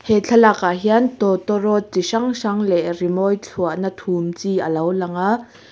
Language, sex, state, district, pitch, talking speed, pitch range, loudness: Mizo, female, Mizoram, Aizawl, 195 Hz, 170 wpm, 180-215 Hz, -18 LUFS